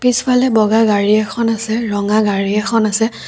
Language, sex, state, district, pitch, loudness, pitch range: Assamese, female, Assam, Kamrup Metropolitan, 220 Hz, -15 LUFS, 210-230 Hz